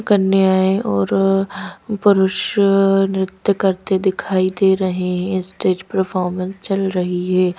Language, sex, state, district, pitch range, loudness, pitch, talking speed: Hindi, female, Madhya Pradesh, Bhopal, 185-195 Hz, -17 LUFS, 190 Hz, 110 wpm